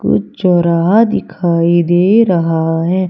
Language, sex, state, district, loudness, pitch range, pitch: Hindi, female, Madhya Pradesh, Umaria, -12 LUFS, 170-185 Hz, 175 Hz